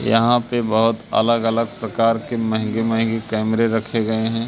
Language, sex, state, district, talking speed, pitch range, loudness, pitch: Hindi, male, Madhya Pradesh, Katni, 145 wpm, 110-115 Hz, -19 LUFS, 115 Hz